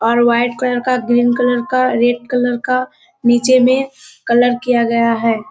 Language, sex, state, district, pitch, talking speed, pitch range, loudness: Hindi, female, Bihar, Kishanganj, 245 Hz, 175 wpm, 240-255 Hz, -14 LUFS